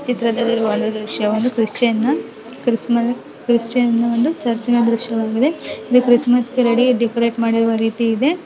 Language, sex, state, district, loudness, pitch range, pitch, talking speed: Kannada, female, Karnataka, Mysore, -17 LUFS, 230-245 Hz, 235 Hz, 115 wpm